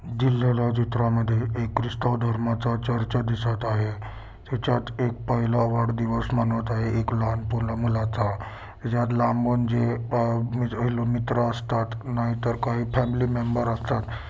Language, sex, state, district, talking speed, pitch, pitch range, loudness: Marathi, male, Maharashtra, Sindhudurg, 115 wpm, 115 Hz, 115-120 Hz, -25 LUFS